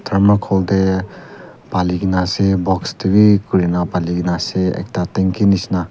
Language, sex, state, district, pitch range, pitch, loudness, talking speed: Nagamese, male, Nagaland, Kohima, 90-100 Hz, 95 Hz, -16 LUFS, 150 wpm